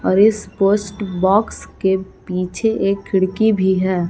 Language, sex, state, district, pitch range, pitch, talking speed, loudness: Hindi, female, Jharkhand, Palamu, 190-210 Hz, 195 Hz, 145 wpm, -18 LUFS